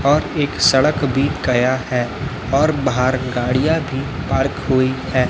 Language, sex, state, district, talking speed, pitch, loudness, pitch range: Hindi, male, Chhattisgarh, Raipur, 145 wpm, 135 Hz, -18 LUFS, 125-140 Hz